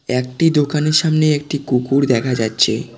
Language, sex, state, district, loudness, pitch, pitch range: Bengali, male, West Bengal, Cooch Behar, -16 LUFS, 145 Hz, 125-150 Hz